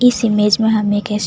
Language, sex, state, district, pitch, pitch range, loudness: Hindi, female, Chhattisgarh, Jashpur, 210 Hz, 210-220 Hz, -15 LUFS